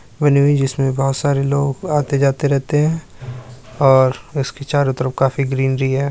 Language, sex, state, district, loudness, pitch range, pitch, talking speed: Hindi, male, Uttar Pradesh, Muzaffarnagar, -17 LUFS, 135-140 Hz, 135 Hz, 145 wpm